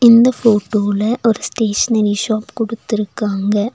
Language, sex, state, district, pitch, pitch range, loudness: Tamil, female, Tamil Nadu, Nilgiris, 215 Hz, 205-230 Hz, -16 LUFS